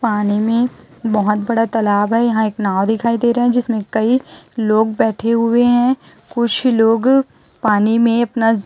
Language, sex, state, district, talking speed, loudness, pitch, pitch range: Hindi, female, Chhattisgarh, Raipur, 165 wpm, -16 LUFS, 225 Hz, 215-240 Hz